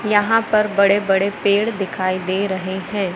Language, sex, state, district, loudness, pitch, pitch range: Hindi, male, Madhya Pradesh, Katni, -18 LUFS, 200 Hz, 190-210 Hz